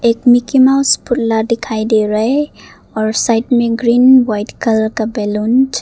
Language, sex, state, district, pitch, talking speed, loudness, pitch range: Hindi, female, Arunachal Pradesh, Papum Pare, 230 Hz, 165 wpm, -13 LUFS, 220-250 Hz